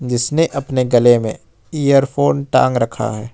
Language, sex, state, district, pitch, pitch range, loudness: Hindi, male, Jharkhand, Ranchi, 125 Hz, 115-140 Hz, -16 LUFS